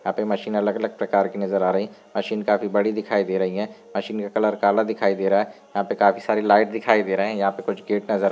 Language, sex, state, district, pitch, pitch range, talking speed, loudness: Hindi, male, Uttar Pradesh, Varanasi, 105 Hz, 100-110 Hz, 280 wpm, -22 LUFS